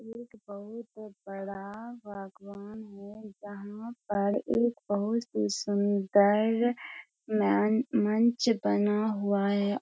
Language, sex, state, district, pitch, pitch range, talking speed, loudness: Hindi, female, Bihar, Kishanganj, 205 Hz, 200-225 Hz, 100 wpm, -28 LUFS